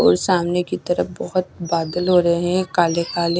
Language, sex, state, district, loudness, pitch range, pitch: Hindi, female, Chhattisgarh, Raipur, -20 LUFS, 170-180 Hz, 175 Hz